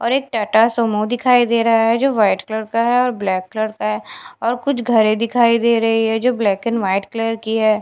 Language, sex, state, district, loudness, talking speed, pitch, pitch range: Hindi, female, Bihar, Katihar, -17 LUFS, 245 wpm, 225 Hz, 215-235 Hz